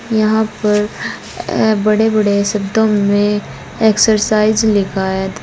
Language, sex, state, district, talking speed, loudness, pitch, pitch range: Hindi, female, Uttar Pradesh, Saharanpur, 100 wpm, -14 LUFS, 215 Hz, 205-220 Hz